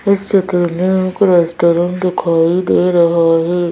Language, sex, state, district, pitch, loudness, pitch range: Hindi, female, Madhya Pradesh, Bhopal, 175 Hz, -13 LUFS, 170-185 Hz